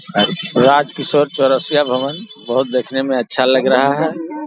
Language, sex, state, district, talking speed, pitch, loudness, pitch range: Hindi, male, Bihar, Vaishali, 160 wpm, 135 Hz, -15 LUFS, 130-160 Hz